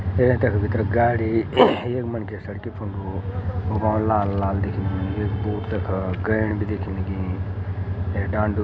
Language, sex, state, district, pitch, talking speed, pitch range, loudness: Garhwali, male, Uttarakhand, Uttarkashi, 100 Hz, 160 wpm, 95-110 Hz, -23 LUFS